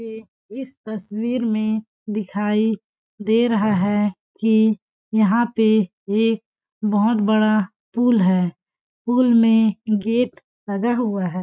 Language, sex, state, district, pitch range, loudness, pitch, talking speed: Hindi, female, Chhattisgarh, Balrampur, 210-225 Hz, -20 LUFS, 215 Hz, 115 wpm